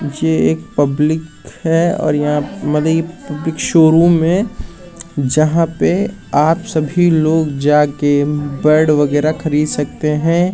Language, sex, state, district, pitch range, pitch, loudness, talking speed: Hindi, male, Bihar, Kishanganj, 145-165 Hz, 155 Hz, -15 LUFS, 130 wpm